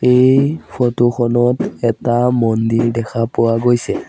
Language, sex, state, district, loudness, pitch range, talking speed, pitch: Assamese, male, Assam, Sonitpur, -15 LUFS, 115-125 Hz, 115 wpm, 120 Hz